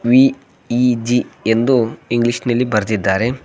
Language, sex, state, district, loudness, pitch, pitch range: Kannada, male, Karnataka, Koppal, -16 LUFS, 120 Hz, 115-125 Hz